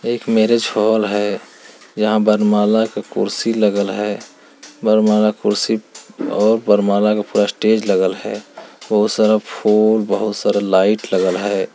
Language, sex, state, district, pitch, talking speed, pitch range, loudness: Hindi, male, Bihar, Jamui, 105 Hz, 145 wpm, 105-110 Hz, -16 LUFS